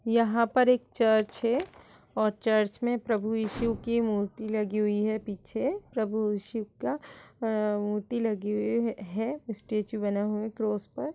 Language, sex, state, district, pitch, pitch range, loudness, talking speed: Hindi, female, Uttar Pradesh, Etah, 220 Hz, 210-235 Hz, -29 LUFS, 160 wpm